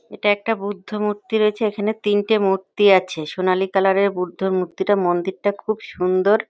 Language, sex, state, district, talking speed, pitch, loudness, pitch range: Bengali, female, West Bengal, North 24 Parganas, 155 wpm, 200 Hz, -20 LUFS, 185-210 Hz